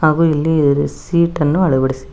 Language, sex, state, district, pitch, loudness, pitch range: Kannada, female, Karnataka, Bangalore, 155 Hz, -15 LUFS, 140-165 Hz